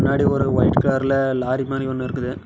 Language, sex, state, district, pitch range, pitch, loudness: Tamil, male, Tamil Nadu, Namakkal, 130-135 Hz, 135 Hz, -20 LUFS